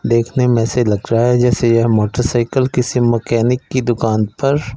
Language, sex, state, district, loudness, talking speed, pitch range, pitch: Hindi, male, Punjab, Fazilka, -15 LUFS, 175 wpm, 115-125 Hz, 120 Hz